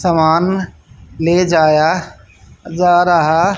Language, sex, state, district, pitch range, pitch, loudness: Hindi, female, Haryana, Jhajjar, 160-180 Hz, 165 Hz, -13 LUFS